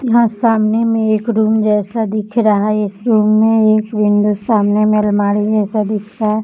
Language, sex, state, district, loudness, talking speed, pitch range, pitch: Hindi, female, Maharashtra, Nagpur, -14 LUFS, 205 wpm, 210-220 Hz, 215 Hz